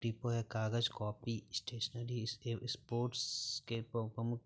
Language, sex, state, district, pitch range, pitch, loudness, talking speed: Bhojpuri, male, Uttar Pradesh, Gorakhpur, 115-120 Hz, 115 Hz, -40 LUFS, 120 wpm